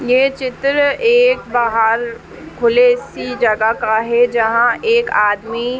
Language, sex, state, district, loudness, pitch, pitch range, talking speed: Hindi, female, Uttar Pradesh, Etah, -15 LUFS, 245 Hz, 230-285 Hz, 135 wpm